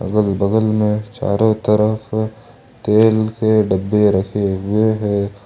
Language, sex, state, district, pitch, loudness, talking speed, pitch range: Hindi, male, Jharkhand, Ranchi, 105 Hz, -17 LUFS, 120 wpm, 100-110 Hz